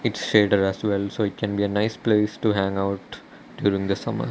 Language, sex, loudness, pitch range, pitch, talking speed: English, male, -23 LUFS, 100-110 Hz, 105 Hz, 225 wpm